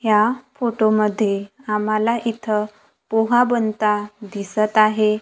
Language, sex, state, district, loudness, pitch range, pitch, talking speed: Marathi, female, Maharashtra, Gondia, -19 LUFS, 210-230 Hz, 215 Hz, 90 wpm